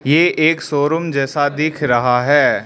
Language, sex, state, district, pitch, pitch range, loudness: Hindi, male, Arunachal Pradesh, Lower Dibang Valley, 150 Hz, 145-160 Hz, -15 LUFS